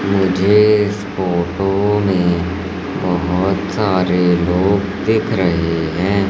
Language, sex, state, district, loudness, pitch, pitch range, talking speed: Hindi, male, Madhya Pradesh, Katni, -16 LUFS, 95 Hz, 90-100 Hz, 95 wpm